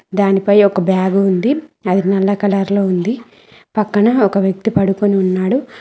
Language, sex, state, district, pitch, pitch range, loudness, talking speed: Telugu, female, Telangana, Mahabubabad, 200 Hz, 195-215 Hz, -15 LUFS, 145 wpm